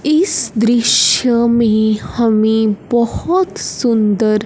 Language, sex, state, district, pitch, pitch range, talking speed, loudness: Hindi, female, Punjab, Fazilka, 235 Hz, 220-240 Hz, 80 wpm, -14 LUFS